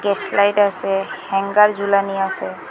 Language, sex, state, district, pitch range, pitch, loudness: Bengali, female, Assam, Hailakandi, 195-205 Hz, 200 Hz, -18 LUFS